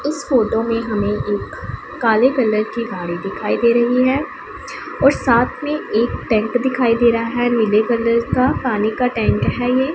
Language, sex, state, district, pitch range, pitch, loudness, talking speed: Hindi, female, Punjab, Pathankot, 220-250 Hz, 235 Hz, -17 LUFS, 180 wpm